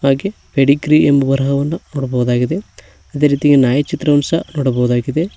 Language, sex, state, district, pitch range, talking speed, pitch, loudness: Kannada, male, Karnataka, Koppal, 135-155 Hz, 125 wpm, 140 Hz, -15 LUFS